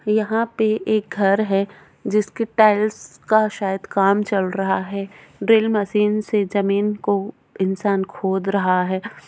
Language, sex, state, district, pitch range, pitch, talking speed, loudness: Hindi, female, Goa, North and South Goa, 195-215 Hz, 205 Hz, 140 wpm, -20 LUFS